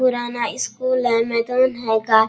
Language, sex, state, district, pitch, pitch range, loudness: Hindi, female, Bihar, Bhagalpur, 240 Hz, 230-255 Hz, -20 LUFS